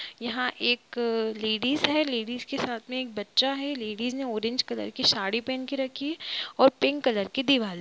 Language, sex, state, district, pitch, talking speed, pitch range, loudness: Hindi, female, Bihar, East Champaran, 250 Hz, 210 wpm, 225-270 Hz, -27 LUFS